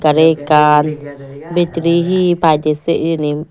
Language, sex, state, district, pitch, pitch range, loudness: Chakma, female, Tripura, Dhalai, 155 Hz, 150-165 Hz, -14 LUFS